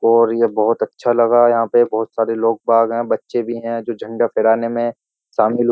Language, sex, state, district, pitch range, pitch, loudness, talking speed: Hindi, male, Uttar Pradesh, Jyotiba Phule Nagar, 115-120 Hz, 115 Hz, -17 LUFS, 230 wpm